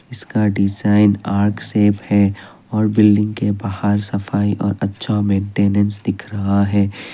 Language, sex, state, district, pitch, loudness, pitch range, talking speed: Hindi, male, Assam, Kamrup Metropolitan, 100 Hz, -17 LUFS, 100-105 Hz, 135 wpm